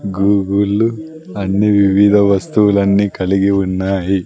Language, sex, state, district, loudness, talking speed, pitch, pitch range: Telugu, male, Andhra Pradesh, Sri Satya Sai, -14 LUFS, 85 wpm, 100 Hz, 95-100 Hz